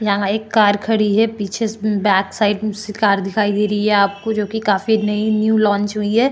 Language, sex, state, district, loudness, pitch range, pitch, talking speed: Hindi, female, Uttarakhand, Tehri Garhwal, -17 LUFS, 205-220 Hz, 210 Hz, 230 wpm